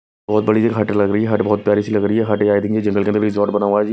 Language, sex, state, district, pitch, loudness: Hindi, male, Maharashtra, Gondia, 105 Hz, -17 LUFS